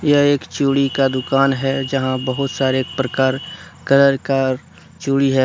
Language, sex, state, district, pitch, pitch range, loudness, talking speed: Hindi, male, Jharkhand, Deoghar, 135 Hz, 130-140 Hz, -18 LUFS, 155 wpm